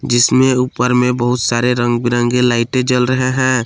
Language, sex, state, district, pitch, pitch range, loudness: Hindi, male, Jharkhand, Palamu, 125 Hz, 120-130 Hz, -14 LUFS